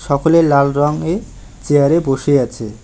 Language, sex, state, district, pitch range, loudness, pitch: Bengali, male, West Bengal, Alipurduar, 125-150 Hz, -15 LUFS, 140 Hz